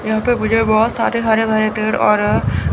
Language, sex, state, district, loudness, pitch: Hindi, female, Chandigarh, Chandigarh, -15 LUFS, 220 Hz